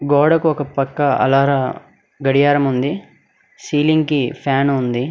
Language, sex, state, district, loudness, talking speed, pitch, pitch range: Telugu, male, Telangana, Hyderabad, -17 LUFS, 115 wpm, 140 Hz, 135-145 Hz